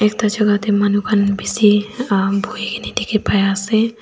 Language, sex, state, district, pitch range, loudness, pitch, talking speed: Nagamese, female, Nagaland, Dimapur, 205-215 Hz, -17 LUFS, 210 Hz, 180 wpm